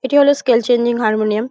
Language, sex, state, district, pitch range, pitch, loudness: Bengali, female, West Bengal, Jhargram, 220-260 Hz, 240 Hz, -15 LUFS